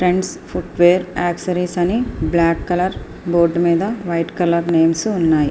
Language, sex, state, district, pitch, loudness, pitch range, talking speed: Telugu, female, Andhra Pradesh, Srikakulam, 175 Hz, -17 LUFS, 170-180 Hz, 130 wpm